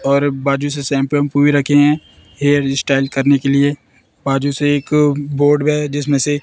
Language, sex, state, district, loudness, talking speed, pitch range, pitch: Hindi, female, Madhya Pradesh, Katni, -15 LUFS, 185 wpm, 140-145 Hz, 145 Hz